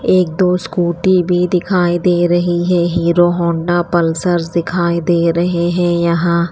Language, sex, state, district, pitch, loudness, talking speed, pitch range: Hindi, female, Himachal Pradesh, Shimla, 175 Hz, -14 LUFS, 140 wpm, 170-180 Hz